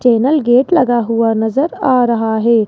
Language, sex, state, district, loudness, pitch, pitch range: Hindi, female, Rajasthan, Jaipur, -13 LUFS, 240 Hz, 230-265 Hz